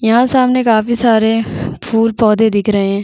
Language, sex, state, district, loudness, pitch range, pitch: Hindi, female, Chhattisgarh, Bastar, -13 LUFS, 215-235 Hz, 225 Hz